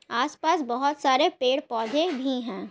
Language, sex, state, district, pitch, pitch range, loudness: Hindi, female, Bihar, Gaya, 270 Hz, 250-310 Hz, -25 LUFS